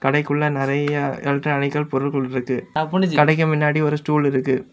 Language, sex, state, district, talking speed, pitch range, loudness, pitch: Tamil, male, Tamil Nadu, Kanyakumari, 125 wpm, 135-150 Hz, -20 LUFS, 145 Hz